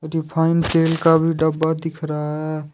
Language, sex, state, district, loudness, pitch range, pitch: Hindi, male, Jharkhand, Deoghar, -19 LUFS, 155-165 Hz, 160 Hz